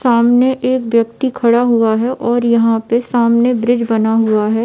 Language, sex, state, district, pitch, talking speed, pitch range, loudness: Hindi, female, Bihar, East Champaran, 235 Hz, 180 wpm, 230-245 Hz, -14 LUFS